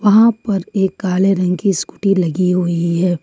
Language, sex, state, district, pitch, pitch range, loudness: Hindi, female, Jharkhand, Ranchi, 190 Hz, 180-200 Hz, -16 LUFS